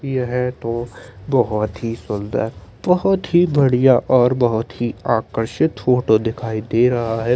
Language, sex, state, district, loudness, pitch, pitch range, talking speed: Hindi, male, Chandigarh, Chandigarh, -18 LUFS, 120 Hz, 110-125 Hz, 130 wpm